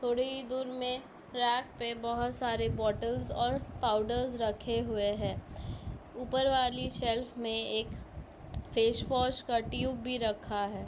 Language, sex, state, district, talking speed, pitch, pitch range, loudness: Hindi, female, Bihar, Begusarai, 130 wpm, 240 Hz, 225-250 Hz, -33 LUFS